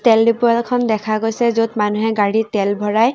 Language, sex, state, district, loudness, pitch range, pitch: Assamese, female, Assam, Sonitpur, -17 LUFS, 215-230 Hz, 225 Hz